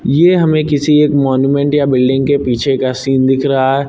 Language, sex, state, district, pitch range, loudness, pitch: Hindi, male, Uttar Pradesh, Lucknow, 130-145 Hz, -12 LUFS, 140 Hz